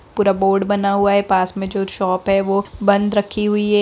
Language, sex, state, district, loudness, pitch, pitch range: Hindi, female, Bihar, Darbhanga, -17 LUFS, 200 Hz, 195-205 Hz